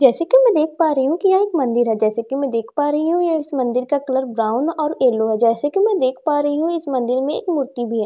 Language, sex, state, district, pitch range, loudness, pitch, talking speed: Hindi, female, Bihar, Katihar, 245-320 Hz, -18 LUFS, 280 Hz, 335 wpm